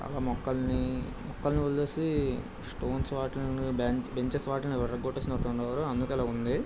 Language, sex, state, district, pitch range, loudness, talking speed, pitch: Telugu, male, Andhra Pradesh, Krishna, 125-135 Hz, -32 LUFS, 90 wpm, 130 Hz